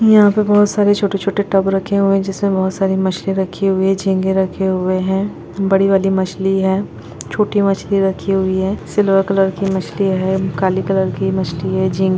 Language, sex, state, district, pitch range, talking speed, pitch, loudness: Hindi, female, Chhattisgarh, Rajnandgaon, 190-195 Hz, 200 wpm, 195 Hz, -16 LUFS